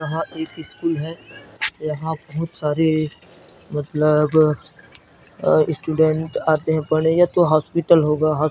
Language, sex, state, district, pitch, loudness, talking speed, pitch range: Hindi, male, Chhattisgarh, Narayanpur, 155 Hz, -20 LUFS, 125 wpm, 150-160 Hz